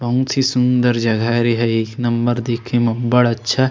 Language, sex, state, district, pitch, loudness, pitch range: Chhattisgarhi, male, Chhattisgarh, Sarguja, 120 Hz, -17 LUFS, 115-125 Hz